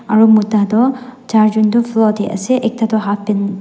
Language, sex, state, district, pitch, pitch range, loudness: Nagamese, female, Nagaland, Dimapur, 220 Hz, 210-235 Hz, -14 LUFS